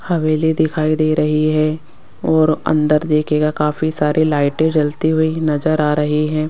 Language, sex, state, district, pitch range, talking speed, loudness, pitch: Hindi, female, Rajasthan, Jaipur, 150-155 Hz, 155 wpm, -16 LUFS, 155 Hz